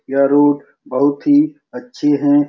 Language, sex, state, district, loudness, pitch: Hindi, male, Bihar, Supaul, -15 LUFS, 145 Hz